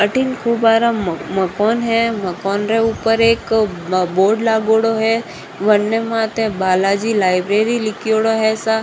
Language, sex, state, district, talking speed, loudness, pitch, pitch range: Rajasthani, female, Rajasthan, Nagaur, 130 wpm, -16 LUFS, 220 Hz, 200-225 Hz